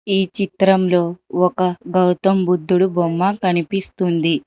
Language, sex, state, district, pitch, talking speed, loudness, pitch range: Telugu, male, Telangana, Hyderabad, 185 Hz, 95 wpm, -18 LUFS, 180-195 Hz